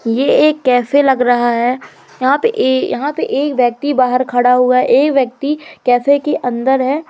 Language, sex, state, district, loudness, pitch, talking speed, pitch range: Hindi, female, Madhya Pradesh, Umaria, -14 LUFS, 260 Hz, 195 wpm, 250-285 Hz